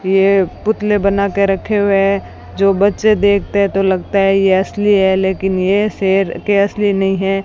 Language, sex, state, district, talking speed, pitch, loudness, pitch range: Hindi, female, Rajasthan, Bikaner, 195 wpm, 195 Hz, -14 LUFS, 195-200 Hz